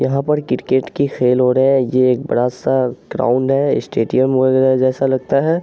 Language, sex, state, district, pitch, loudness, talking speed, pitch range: Angika, male, Bihar, Araria, 130 Hz, -16 LUFS, 200 wpm, 125-135 Hz